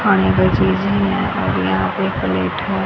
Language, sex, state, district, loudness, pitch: Hindi, female, Haryana, Charkhi Dadri, -17 LUFS, 95 Hz